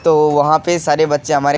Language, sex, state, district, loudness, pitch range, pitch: Hindi, male, Bihar, Kishanganj, -14 LUFS, 145-155 Hz, 150 Hz